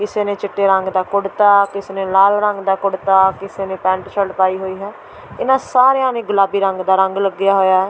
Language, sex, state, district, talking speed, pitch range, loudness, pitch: Punjabi, female, Delhi, New Delhi, 220 wpm, 190-205 Hz, -16 LUFS, 195 Hz